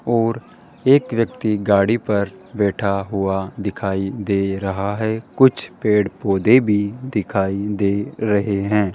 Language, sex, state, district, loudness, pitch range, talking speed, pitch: Hindi, male, Rajasthan, Jaipur, -19 LUFS, 100-110 Hz, 125 wpm, 105 Hz